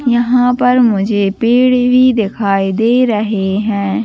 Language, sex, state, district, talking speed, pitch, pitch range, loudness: Hindi, female, Chhattisgarh, Bastar, 135 wpm, 225 Hz, 200-250 Hz, -12 LUFS